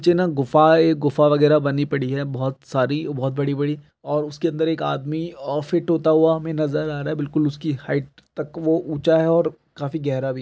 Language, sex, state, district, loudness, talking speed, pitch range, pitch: Maithili, male, Bihar, Araria, -21 LUFS, 220 wpm, 140-160 Hz, 150 Hz